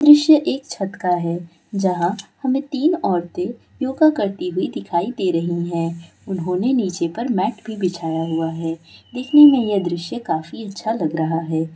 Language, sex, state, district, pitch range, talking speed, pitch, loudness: Hindi, female, Bihar, Bhagalpur, 170-240 Hz, 170 wpm, 185 Hz, -20 LUFS